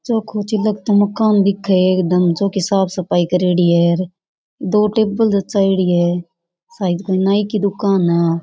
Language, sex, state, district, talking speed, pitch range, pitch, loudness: Rajasthani, female, Rajasthan, Churu, 165 wpm, 180-205 Hz, 190 Hz, -16 LUFS